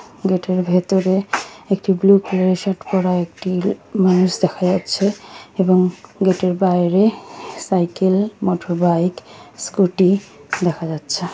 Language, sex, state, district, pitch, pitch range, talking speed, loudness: Bengali, female, West Bengal, Kolkata, 185 Hz, 180-195 Hz, 105 wpm, -18 LUFS